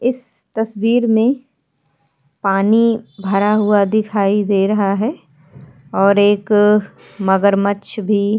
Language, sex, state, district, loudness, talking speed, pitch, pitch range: Hindi, female, Uttarakhand, Tehri Garhwal, -16 LUFS, 100 wpm, 205 Hz, 195-220 Hz